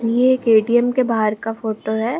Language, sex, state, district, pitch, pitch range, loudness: Hindi, female, Bihar, Saharsa, 230 Hz, 220-245 Hz, -18 LUFS